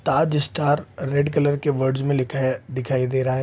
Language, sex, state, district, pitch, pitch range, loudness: Hindi, male, Bihar, Saharsa, 135 Hz, 130-145 Hz, -22 LUFS